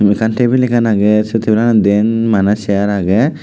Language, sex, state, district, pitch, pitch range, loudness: Chakma, male, Tripura, West Tripura, 110 Hz, 105-115 Hz, -13 LUFS